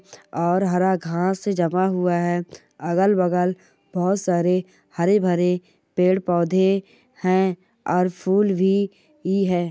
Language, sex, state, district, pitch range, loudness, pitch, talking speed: Hindi, female, Andhra Pradesh, Guntur, 175-190 Hz, -21 LUFS, 185 Hz, 115 wpm